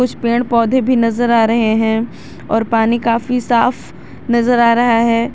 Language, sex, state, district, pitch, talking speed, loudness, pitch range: Hindi, female, Jharkhand, Garhwa, 235 Hz, 180 wpm, -14 LUFS, 230-240 Hz